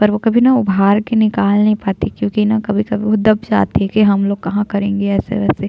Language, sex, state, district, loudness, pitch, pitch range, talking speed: Hindi, female, Chhattisgarh, Jashpur, -15 LUFS, 210 Hz, 200-215 Hz, 265 wpm